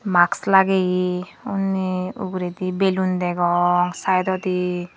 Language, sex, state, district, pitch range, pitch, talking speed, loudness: Chakma, female, Tripura, Dhalai, 180-190 Hz, 185 Hz, 85 wpm, -21 LUFS